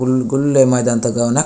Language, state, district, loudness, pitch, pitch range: Gondi, Chhattisgarh, Sukma, -15 LUFS, 125 Hz, 120-135 Hz